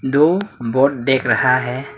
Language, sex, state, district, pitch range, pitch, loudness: Hindi, male, Arunachal Pradesh, Lower Dibang Valley, 125-140 Hz, 130 Hz, -16 LUFS